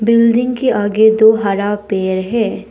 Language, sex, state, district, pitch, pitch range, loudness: Hindi, female, Arunachal Pradesh, Papum Pare, 220 Hz, 200-230 Hz, -13 LUFS